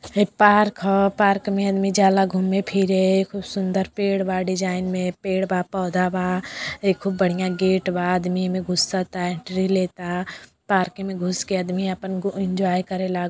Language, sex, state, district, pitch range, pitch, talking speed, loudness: Bhojpuri, female, Uttar Pradesh, Deoria, 185-195 Hz, 190 Hz, 165 wpm, -22 LUFS